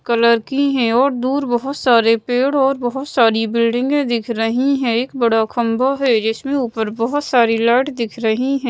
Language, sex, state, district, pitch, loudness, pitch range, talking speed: Hindi, female, Madhya Pradesh, Bhopal, 240 Hz, -17 LUFS, 230-270 Hz, 185 wpm